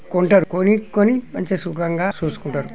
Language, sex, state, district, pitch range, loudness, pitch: Telugu, male, Telangana, Nalgonda, 170-205 Hz, -19 LUFS, 185 Hz